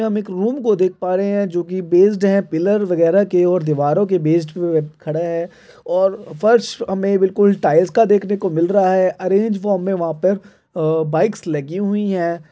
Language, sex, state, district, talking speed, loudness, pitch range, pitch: Hindi, male, Bihar, Jamui, 200 wpm, -17 LUFS, 170-200 Hz, 185 Hz